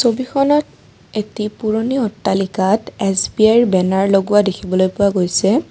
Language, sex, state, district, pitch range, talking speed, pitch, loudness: Assamese, female, Assam, Kamrup Metropolitan, 190-220 Hz, 115 wpm, 200 Hz, -16 LUFS